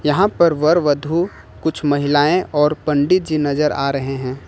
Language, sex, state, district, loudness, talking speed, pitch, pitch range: Hindi, male, Jharkhand, Ranchi, -17 LUFS, 175 wpm, 150 Hz, 145-160 Hz